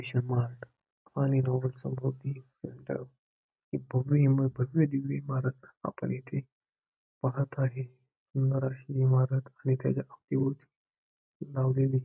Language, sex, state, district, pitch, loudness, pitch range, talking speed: Marathi, male, Maharashtra, Pune, 135 Hz, -31 LUFS, 130-135 Hz, 115 wpm